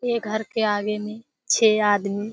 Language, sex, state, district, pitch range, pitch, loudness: Hindi, female, Bihar, Kishanganj, 210-225 Hz, 215 Hz, -22 LUFS